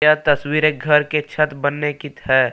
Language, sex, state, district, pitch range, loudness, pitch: Hindi, male, Jharkhand, Palamu, 145-150 Hz, -18 LUFS, 150 Hz